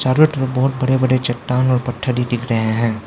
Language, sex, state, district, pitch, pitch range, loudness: Hindi, male, Arunachal Pradesh, Lower Dibang Valley, 125 Hz, 120-130 Hz, -17 LUFS